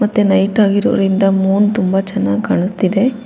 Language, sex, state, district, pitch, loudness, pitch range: Kannada, female, Karnataka, Bangalore, 195 Hz, -14 LUFS, 190-210 Hz